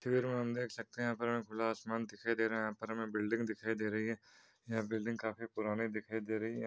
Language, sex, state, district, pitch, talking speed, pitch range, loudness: Hindi, male, Uttar Pradesh, Hamirpur, 115 Hz, 270 wpm, 110-115 Hz, -38 LUFS